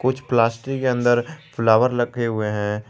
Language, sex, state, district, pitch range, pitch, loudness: Hindi, male, Jharkhand, Garhwa, 110-130 Hz, 120 Hz, -20 LUFS